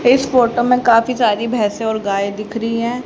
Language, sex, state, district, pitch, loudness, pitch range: Hindi, female, Haryana, Charkhi Dadri, 230 Hz, -16 LUFS, 220-245 Hz